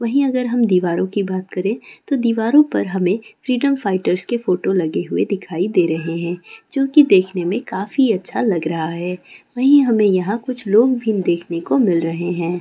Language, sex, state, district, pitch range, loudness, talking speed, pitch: Hindi, female, West Bengal, Kolkata, 180-250 Hz, -18 LUFS, 195 wpm, 195 Hz